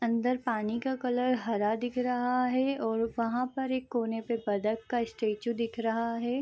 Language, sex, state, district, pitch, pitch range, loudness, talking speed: Hindi, female, Bihar, East Champaran, 235 Hz, 225-250 Hz, -31 LUFS, 185 wpm